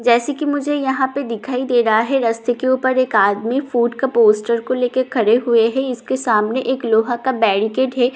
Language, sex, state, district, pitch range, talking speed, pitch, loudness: Hindi, female, Bihar, Katihar, 230-260 Hz, 230 wpm, 245 Hz, -17 LUFS